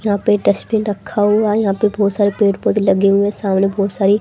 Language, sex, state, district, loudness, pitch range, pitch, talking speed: Hindi, female, Haryana, Rohtak, -16 LUFS, 200-210 Hz, 205 Hz, 270 wpm